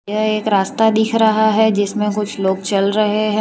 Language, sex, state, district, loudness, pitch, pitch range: Hindi, female, Gujarat, Valsad, -16 LUFS, 215 Hz, 205-220 Hz